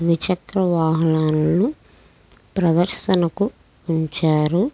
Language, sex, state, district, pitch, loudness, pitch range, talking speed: Telugu, female, Andhra Pradesh, Krishna, 170 Hz, -20 LUFS, 160-185 Hz, 50 wpm